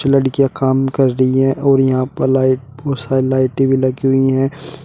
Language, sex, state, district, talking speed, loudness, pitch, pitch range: Hindi, male, Uttar Pradesh, Shamli, 200 wpm, -15 LUFS, 135 Hz, 130-135 Hz